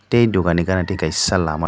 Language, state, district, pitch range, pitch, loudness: Kokborok, Tripura, Dhalai, 85-95 Hz, 95 Hz, -18 LUFS